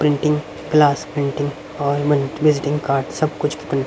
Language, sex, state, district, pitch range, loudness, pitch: Hindi, male, Haryana, Rohtak, 140-150 Hz, -19 LUFS, 145 Hz